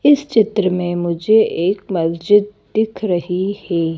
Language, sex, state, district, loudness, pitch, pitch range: Hindi, female, Madhya Pradesh, Bhopal, -17 LUFS, 195 Hz, 175-215 Hz